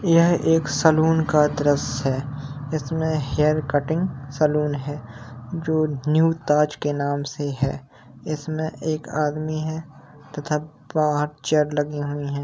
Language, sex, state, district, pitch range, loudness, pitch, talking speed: Hindi, male, Uttar Pradesh, Jalaun, 145-155 Hz, -23 LUFS, 150 Hz, 135 wpm